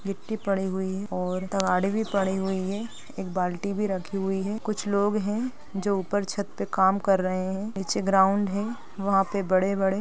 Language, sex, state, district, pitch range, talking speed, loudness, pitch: Hindi, female, Chhattisgarh, Rajnandgaon, 190-205 Hz, 210 wpm, -27 LUFS, 195 Hz